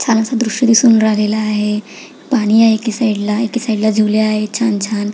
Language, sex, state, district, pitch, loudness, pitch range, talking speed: Marathi, female, Maharashtra, Pune, 215 Hz, -14 LUFS, 210-230 Hz, 185 wpm